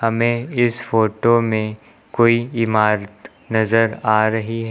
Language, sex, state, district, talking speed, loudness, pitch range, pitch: Hindi, male, Uttar Pradesh, Lucknow, 125 wpm, -18 LUFS, 110-115 Hz, 115 Hz